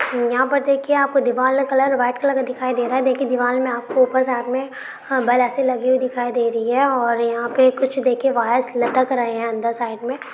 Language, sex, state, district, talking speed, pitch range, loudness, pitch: Maithili, female, Bihar, Supaul, 225 wpm, 240-265 Hz, -19 LUFS, 255 Hz